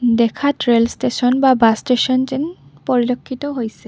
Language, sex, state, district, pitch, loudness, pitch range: Assamese, female, Assam, Kamrup Metropolitan, 250 Hz, -17 LUFS, 235-265 Hz